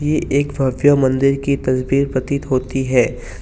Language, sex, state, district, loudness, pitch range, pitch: Hindi, male, Assam, Kamrup Metropolitan, -17 LUFS, 130-140 Hz, 135 Hz